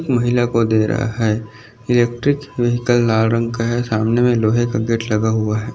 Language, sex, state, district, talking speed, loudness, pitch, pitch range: Hindi, male, Maharashtra, Aurangabad, 190 wpm, -17 LUFS, 115 Hz, 110-120 Hz